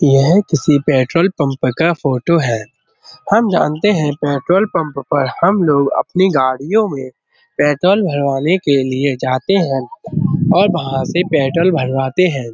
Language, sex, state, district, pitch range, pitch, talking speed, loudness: Hindi, male, Uttar Pradesh, Budaun, 135-180 Hz, 150 Hz, 145 wpm, -15 LUFS